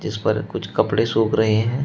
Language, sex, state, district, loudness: Hindi, male, Uttar Pradesh, Shamli, -20 LUFS